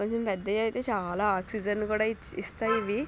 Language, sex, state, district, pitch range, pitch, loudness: Telugu, female, Telangana, Nalgonda, 205-225 Hz, 215 Hz, -30 LUFS